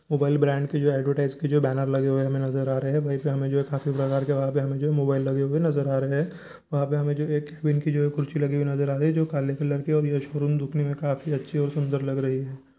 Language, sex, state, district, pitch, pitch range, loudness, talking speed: Hindi, male, Jharkhand, Jamtara, 145 Hz, 135-150 Hz, -25 LUFS, 275 wpm